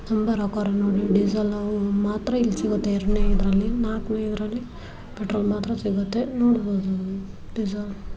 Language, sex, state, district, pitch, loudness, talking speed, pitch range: Kannada, female, Karnataka, Dharwad, 210 Hz, -24 LUFS, 130 wpm, 200-220 Hz